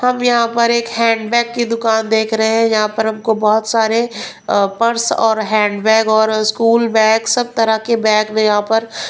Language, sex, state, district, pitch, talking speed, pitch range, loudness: Hindi, female, Punjab, Pathankot, 225 Hz, 205 wpm, 220-230 Hz, -14 LUFS